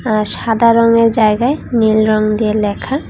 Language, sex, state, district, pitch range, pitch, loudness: Bengali, female, Tripura, West Tripura, 215-230 Hz, 220 Hz, -13 LUFS